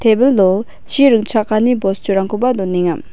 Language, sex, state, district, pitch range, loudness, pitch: Garo, female, Meghalaya, West Garo Hills, 195-245 Hz, -14 LUFS, 215 Hz